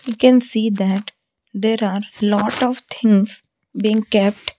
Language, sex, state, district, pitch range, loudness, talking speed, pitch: English, female, Odisha, Malkangiri, 205-225 Hz, -18 LUFS, 145 wpm, 215 Hz